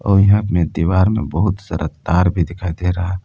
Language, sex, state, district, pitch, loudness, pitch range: Hindi, male, Jharkhand, Palamu, 90 Hz, -17 LUFS, 85-100 Hz